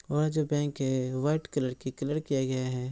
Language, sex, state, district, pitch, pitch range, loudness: Hindi, male, Bihar, Araria, 140 Hz, 130-150 Hz, -30 LUFS